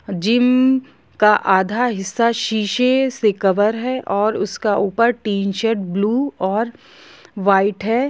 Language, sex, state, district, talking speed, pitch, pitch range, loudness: Hindi, female, Jharkhand, Jamtara, 120 wpm, 215 Hz, 200-245 Hz, -18 LUFS